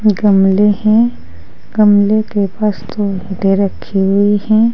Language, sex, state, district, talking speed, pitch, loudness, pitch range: Hindi, female, Uttar Pradesh, Saharanpur, 125 wpm, 205 Hz, -13 LUFS, 195-215 Hz